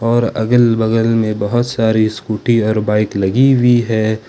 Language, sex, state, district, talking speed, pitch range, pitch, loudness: Hindi, male, Jharkhand, Ranchi, 165 wpm, 110-120 Hz, 110 Hz, -14 LUFS